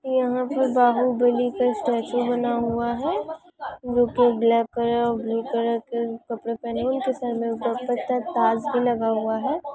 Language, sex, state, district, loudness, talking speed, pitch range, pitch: Hindi, female, Maharashtra, Aurangabad, -23 LUFS, 165 wpm, 230-250 Hz, 240 Hz